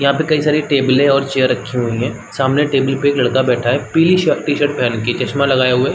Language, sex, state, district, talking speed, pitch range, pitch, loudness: Hindi, male, Chhattisgarh, Balrampur, 270 wpm, 125-145 Hz, 135 Hz, -15 LUFS